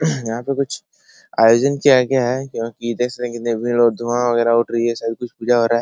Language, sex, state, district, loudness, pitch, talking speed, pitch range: Hindi, male, Bihar, Araria, -18 LUFS, 120 Hz, 235 wpm, 115-125 Hz